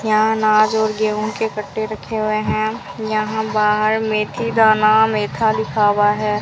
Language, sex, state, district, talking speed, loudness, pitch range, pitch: Hindi, female, Rajasthan, Bikaner, 160 wpm, -17 LUFS, 215-220 Hz, 215 Hz